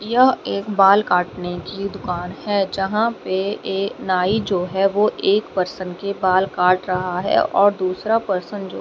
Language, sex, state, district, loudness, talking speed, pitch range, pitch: Hindi, female, Haryana, Rohtak, -20 LUFS, 170 wpm, 185-205 Hz, 195 Hz